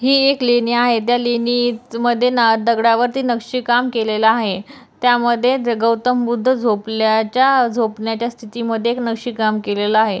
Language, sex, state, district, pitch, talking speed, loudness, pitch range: Marathi, female, Maharashtra, Dhule, 235 Hz, 125 wpm, -17 LUFS, 225-245 Hz